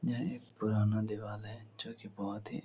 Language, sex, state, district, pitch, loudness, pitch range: Hindi, male, Uttar Pradesh, Etah, 105 Hz, -37 LUFS, 100-110 Hz